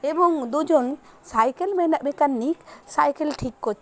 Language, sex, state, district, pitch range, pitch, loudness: Bengali, female, West Bengal, Purulia, 260-315 Hz, 295 Hz, -23 LUFS